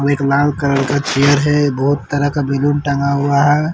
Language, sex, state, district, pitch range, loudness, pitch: Hindi, male, Bihar, Patna, 140-145 Hz, -15 LUFS, 145 Hz